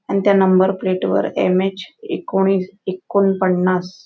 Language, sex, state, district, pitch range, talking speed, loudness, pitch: Marathi, female, Maharashtra, Nagpur, 185-195 Hz, 135 wpm, -18 LUFS, 190 Hz